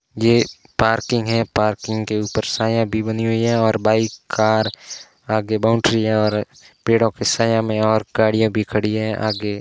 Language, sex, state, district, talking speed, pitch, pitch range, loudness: Hindi, male, Rajasthan, Barmer, 180 wpm, 110 Hz, 110-115 Hz, -19 LUFS